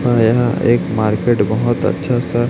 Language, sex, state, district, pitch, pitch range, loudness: Hindi, male, Chhattisgarh, Raipur, 120 Hz, 110-120 Hz, -16 LUFS